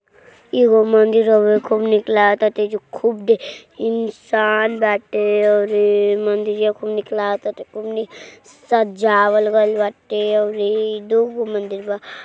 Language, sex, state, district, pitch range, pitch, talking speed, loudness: Hindi, female, Uttar Pradesh, Gorakhpur, 210-220 Hz, 215 Hz, 130 wpm, -17 LUFS